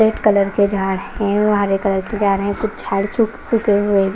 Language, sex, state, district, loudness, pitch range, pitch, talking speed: Hindi, female, Punjab, Kapurthala, -17 LUFS, 195-210 Hz, 200 Hz, 260 wpm